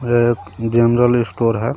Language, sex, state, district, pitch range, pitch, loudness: Hindi, male, Jharkhand, Garhwa, 115-120 Hz, 120 Hz, -16 LUFS